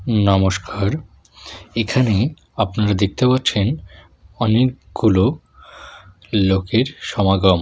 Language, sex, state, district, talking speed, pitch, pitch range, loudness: Bengali, male, West Bengal, Jalpaiguri, 65 wpm, 100 Hz, 95-115 Hz, -18 LUFS